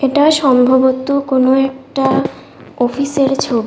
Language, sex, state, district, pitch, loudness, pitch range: Bengali, female, Tripura, West Tripura, 270 Hz, -14 LUFS, 260-275 Hz